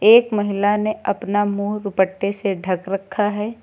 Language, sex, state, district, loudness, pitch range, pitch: Hindi, female, Uttar Pradesh, Lucknow, -20 LUFS, 195-210 Hz, 205 Hz